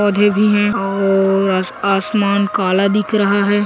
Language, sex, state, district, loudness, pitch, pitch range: Hindi, female, Chhattisgarh, Kabirdham, -15 LUFS, 200 Hz, 195-205 Hz